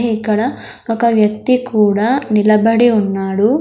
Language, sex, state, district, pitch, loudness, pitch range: Telugu, female, Andhra Pradesh, Sri Satya Sai, 220 Hz, -14 LUFS, 210-235 Hz